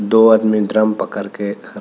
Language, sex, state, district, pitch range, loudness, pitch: Hindi, male, Arunachal Pradesh, Papum Pare, 105-110 Hz, -16 LUFS, 110 Hz